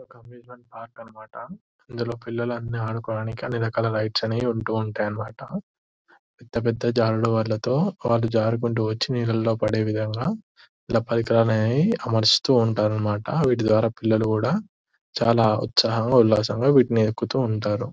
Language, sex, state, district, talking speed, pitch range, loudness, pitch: Telugu, male, Telangana, Nalgonda, 110 wpm, 110-120 Hz, -23 LUFS, 115 Hz